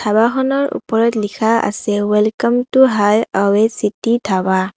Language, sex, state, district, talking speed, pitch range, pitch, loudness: Assamese, female, Assam, Kamrup Metropolitan, 125 wpm, 205-235 Hz, 215 Hz, -15 LUFS